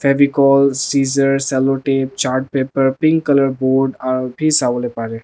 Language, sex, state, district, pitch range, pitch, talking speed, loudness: Nagamese, male, Nagaland, Dimapur, 130-140 Hz, 135 Hz, 125 wpm, -16 LUFS